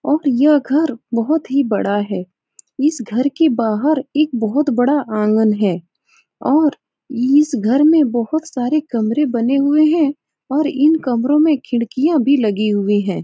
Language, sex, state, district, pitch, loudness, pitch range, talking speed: Hindi, female, Uttar Pradesh, Etah, 270 Hz, -16 LUFS, 230-300 Hz, 160 wpm